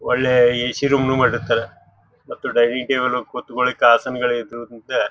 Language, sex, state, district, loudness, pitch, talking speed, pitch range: Kannada, male, Karnataka, Bijapur, -18 LUFS, 125 Hz, 140 wpm, 120-125 Hz